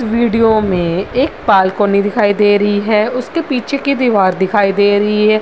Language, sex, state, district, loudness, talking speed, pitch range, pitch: Hindi, female, Bihar, Madhepura, -13 LUFS, 190 wpm, 200-235 Hz, 210 Hz